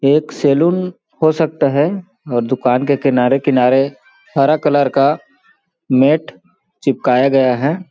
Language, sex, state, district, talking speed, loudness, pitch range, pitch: Hindi, male, Chhattisgarh, Balrampur, 120 wpm, -15 LUFS, 135-165 Hz, 145 Hz